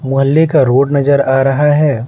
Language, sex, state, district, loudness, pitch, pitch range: Hindi, male, Bihar, Patna, -11 LUFS, 140 Hz, 135-150 Hz